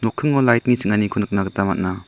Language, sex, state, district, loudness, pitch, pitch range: Garo, male, Meghalaya, South Garo Hills, -19 LUFS, 105 Hz, 100-120 Hz